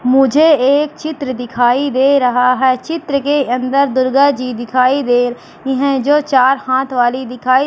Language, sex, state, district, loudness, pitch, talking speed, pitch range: Hindi, female, Madhya Pradesh, Katni, -14 LUFS, 265 Hz, 165 wpm, 250-280 Hz